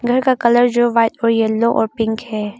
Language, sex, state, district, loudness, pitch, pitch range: Hindi, female, Arunachal Pradesh, Longding, -16 LUFS, 230 Hz, 225-240 Hz